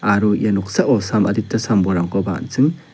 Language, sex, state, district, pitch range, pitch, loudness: Garo, male, Meghalaya, South Garo Hills, 100-115 Hz, 105 Hz, -18 LUFS